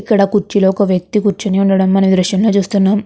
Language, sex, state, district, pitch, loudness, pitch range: Telugu, female, Andhra Pradesh, Guntur, 195 Hz, -13 LUFS, 190-205 Hz